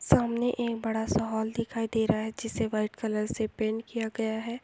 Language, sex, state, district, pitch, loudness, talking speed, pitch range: Hindi, female, Bihar, Jamui, 225 Hz, -30 LUFS, 220 wpm, 220-230 Hz